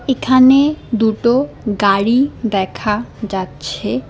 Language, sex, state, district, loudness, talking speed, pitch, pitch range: Bengali, female, Assam, Hailakandi, -15 LUFS, 75 wpm, 220 Hz, 200-260 Hz